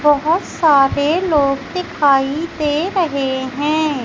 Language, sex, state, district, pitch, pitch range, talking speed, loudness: Hindi, female, Madhya Pradesh, Umaria, 295 Hz, 275-320 Hz, 105 wpm, -16 LUFS